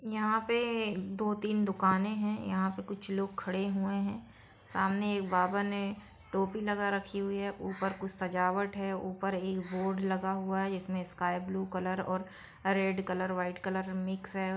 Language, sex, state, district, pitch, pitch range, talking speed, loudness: Hindi, female, Bihar, Saran, 195 Hz, 190-200 Hz, 170 wpm, -33 LUFS